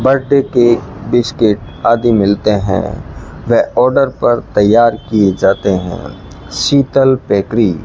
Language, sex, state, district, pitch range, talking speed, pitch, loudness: Hindi, male, Rajasthan, Bikaner, 100-125 Hz, 120 wpm, 110 Hz, -12 LUFS